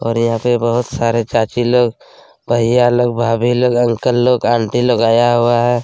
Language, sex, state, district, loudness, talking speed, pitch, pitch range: Hindi, male, Chhattisgarh, Kabirdham, -14 LUFS, 195 wpm, 120 Hz, 115-120 Hz